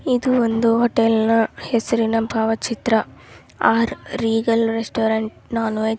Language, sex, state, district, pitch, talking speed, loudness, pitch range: Kannada, female, Karnataka, Raichur, 225 Hz, 100 wpm, -19 LUFS, 225-230 Hz